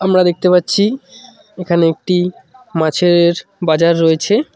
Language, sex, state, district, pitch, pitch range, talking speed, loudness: Bengali, male, West Bengal, Cooch Behar, 180 Hz, 170-205 Hz, 105 wpm, -14 LUFS